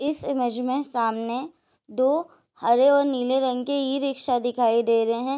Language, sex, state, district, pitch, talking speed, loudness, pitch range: Hindi, female, Bihar, Kishanganj, 260 Hz, 165 wpm, -23 LUFS, 240-275 Hz